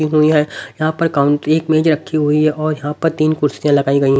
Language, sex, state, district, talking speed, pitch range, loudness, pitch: Hindi, male, Haryana, Rohtak, 245 wpm, 145-155 Hz, -15 LUFS, 155 Hz